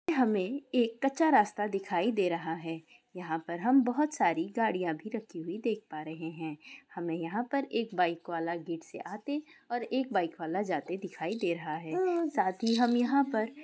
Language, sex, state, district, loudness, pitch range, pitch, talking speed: Hindi, female, West Bengal, Malda, -32 LUFS, 170-245 Hz, 210 Hz, 190 wpm